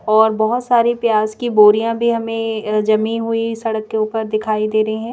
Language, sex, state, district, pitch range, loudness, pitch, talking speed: Hindi, female, Madhya Pradesh, Bhopal, 215-230 Hz, -17 LUFS, 220 Hz, 200 wpm